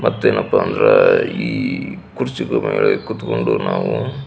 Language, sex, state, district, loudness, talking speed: Kannada, male, Karnataka, Belgaum, -17 LUFS, 110 wpm